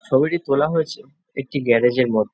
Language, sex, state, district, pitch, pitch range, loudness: Bengali, male, West Bengal, Jhargram, 140 Hz, 125-160 Hz, -20 LUFS